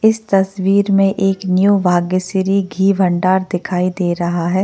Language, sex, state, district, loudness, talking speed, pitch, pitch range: Hindi, female, Maharashtra, Chandrapur, -15 LUFS, 155 wpm, 190 Hz, 180-195 Hz